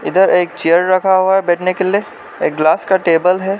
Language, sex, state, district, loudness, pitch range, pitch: Hindi, male, Arunachal Pradesh, Lower Dibang Valley, -14 LUFS, 175-190 Hz, 185 Hz